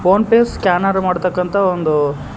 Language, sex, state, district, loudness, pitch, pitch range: Kannada, male, Karnataka, Koppal, -15 LUFS, 185 Hz, 175-195 Hz